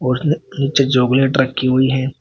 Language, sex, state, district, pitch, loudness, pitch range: Hindi, male, Uttar Pradesh, Shamli, 130 Hz, -16 LUFS, 130-135 Hz